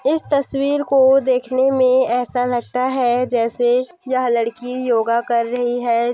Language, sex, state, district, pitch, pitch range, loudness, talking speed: Hindi, female, Chhattisgarh, Korba, 250 Hz, 240-260 Hz, -17 LUFS, 145 wpm